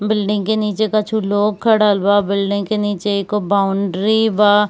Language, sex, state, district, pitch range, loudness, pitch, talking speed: Hindi, female, Bihar, Kishanganj, 200-215 Hz, -16 LUFS, 205 Hz, 165 wpm